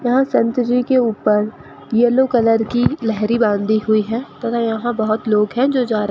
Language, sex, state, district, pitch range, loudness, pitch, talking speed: Hindi, female, Rajasthan, Bikaner, 215-245 Hz, -17 LUFS, 230 Hz, 195 wpm